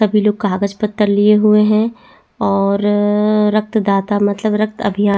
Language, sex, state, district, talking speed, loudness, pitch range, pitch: Hindi, female, Chhattisgarh, Bastar, 150 wpm, -15 LUFS, 205-215 Hz, 210 Hz